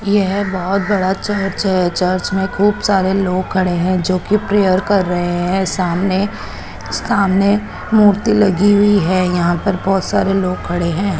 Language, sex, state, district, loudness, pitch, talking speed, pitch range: Hindi, female, Chandigarh, Chandigarh, -15 LUFS, 190 Hz, 160 wpm, 185-200 Hz